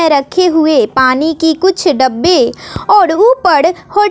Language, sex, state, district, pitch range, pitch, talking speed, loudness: Hindi, female, Bihar, West Champaran, 295-375 Hz, 325 Hz, 130 wpm, -10 LUFS